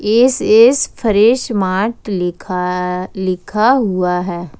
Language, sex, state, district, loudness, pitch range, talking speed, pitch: Hindi, female, Jharkhand, Ranchi, -15 LUFS, 180-225 Hz, 105 wpm, 195 Hz